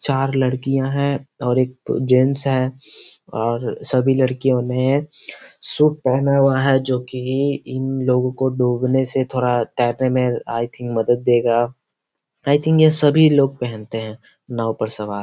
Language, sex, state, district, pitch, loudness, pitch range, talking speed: Hindi, male, Bihar, Gopalganj, 130 Hz, -19 LUFS, 120-135 Hz, 160 wpm